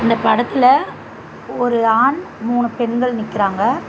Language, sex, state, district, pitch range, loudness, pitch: Tamil, female, Tamil Nadu, Chennai, 225-250 Hz, -16 LUFS, 235 Hz